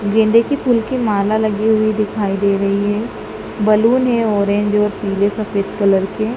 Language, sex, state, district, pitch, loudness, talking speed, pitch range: Hindi, male, Madhya Pradesh, Dhar, 210 Hz, -16 LUFS, 180 wpm, 200-220 Hz